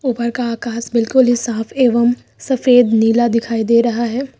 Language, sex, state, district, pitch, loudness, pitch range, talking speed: Hindi, female, Uttar Pradesh, Lucknow, 235 Hz, -15 LUFS, 230-245 Hz, 175 wpm